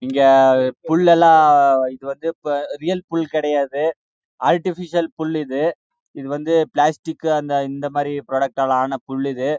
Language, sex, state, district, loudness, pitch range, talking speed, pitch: Tamil, male, Karnataka, Chamarajanagar, -18 LUFS, 135-165 Hz, 75 wpm, 145 Hz